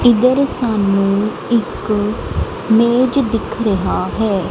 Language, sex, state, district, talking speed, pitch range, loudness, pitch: Punjabi, female, Punjab, Kapurthala, 95 wpm, 205-240 Hz, -16 LUFS, 225 Hz